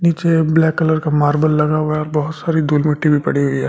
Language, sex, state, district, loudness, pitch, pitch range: Hindi, male, Delhi, New Delhi, -16 LUFS, 155 Hz, 150-160 Hz